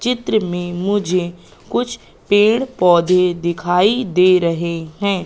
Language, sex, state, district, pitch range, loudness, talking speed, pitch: Hindi, female, Madhya Pradesh, Katni, 175-205 Hz, -16 LUFS, 115 wpm, 180 Hz